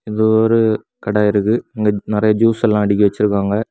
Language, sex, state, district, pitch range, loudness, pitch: Tamil, male, Tamil Nadu, Kanyakumari, 105-110 Hz, -16 LUFS, 105 Hz